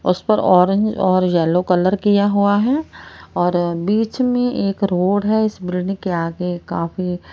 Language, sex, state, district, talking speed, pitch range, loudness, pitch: Hindi, female, Haryana, Rohtak, 165 wpm, 180-210 Hz, -18 LUFS, 190 Hz